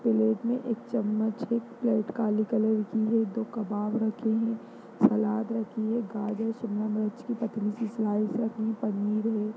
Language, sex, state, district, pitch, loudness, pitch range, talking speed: Hindi, female, Bihar, Darbhanga, 220 Hz, -29 LUFS, 215-230 Hz, 175 wpm